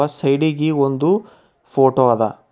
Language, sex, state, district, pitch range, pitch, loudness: Kannada, male, Karnataka, Bidar, 135-155 Hz, 140 Hz, -17 LUFS